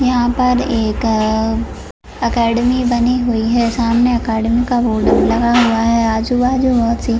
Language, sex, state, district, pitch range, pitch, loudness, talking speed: Hindi, female, Jharkhand, Jamtara, 230-245 Hz, 235 Hz, -15 LUFS, 140 wpm